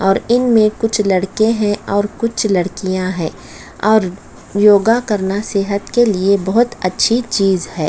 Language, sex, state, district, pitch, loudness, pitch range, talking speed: Hindi, female, Chhattisgarh, Sukma, 205 Hz, -15 LUFS, 190-225 Hz, 150 wpm